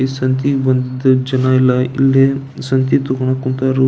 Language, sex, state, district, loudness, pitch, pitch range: Kannada, male, Karnataka, Belgaum, -15 LUFS, 130 Hz, 130-135 Hz